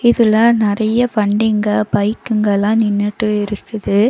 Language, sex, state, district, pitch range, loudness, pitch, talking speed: Tamil, female, Tamil Nadu, Nilgiris, 205-225 Hz, -15 LUFS, 215 Hz, 100 wpm